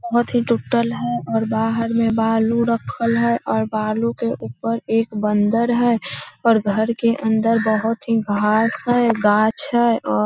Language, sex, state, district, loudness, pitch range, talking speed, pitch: Magahi, female, Bihar, Lakhisarai, -19 LUFS, 220-235 Hz, 170 wpm, 230 Hz